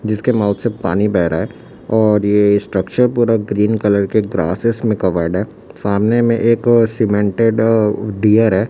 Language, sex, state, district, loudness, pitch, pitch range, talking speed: Hindi, male, Chhattisgarh, Raipur, -15 LUFS, 105 Hz, 100-115 Hz, 165 wpm